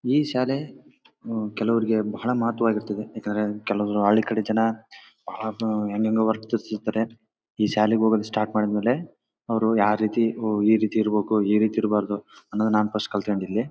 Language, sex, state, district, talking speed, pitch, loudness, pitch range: Kannada, male, Karnataka, Bellary, 155 wpm, 110 Hz, -24 LUFS, 105-115 Hz